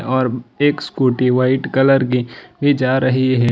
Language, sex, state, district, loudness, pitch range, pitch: Hindi, male, Gujarat, Valsad, -16 LUFS, 125-135 Hz, 130 Hz